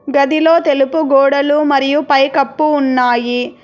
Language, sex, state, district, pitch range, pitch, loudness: Telugu, female, Telangana, Hyderabad, 270-300 Hz, 280 Hz, -13 LUFS